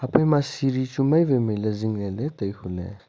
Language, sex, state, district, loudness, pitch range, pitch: Wancho, male, Arunachal Pradesh, Longding, -24 LUFS, 100-140 Hz, 115 Hz